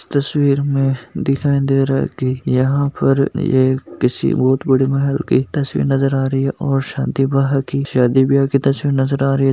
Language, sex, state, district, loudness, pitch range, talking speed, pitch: Hindi, male, Rajasthan, Nagaur, -17 LUFS, 135-140 Hz, 200 wpm, 135 Hz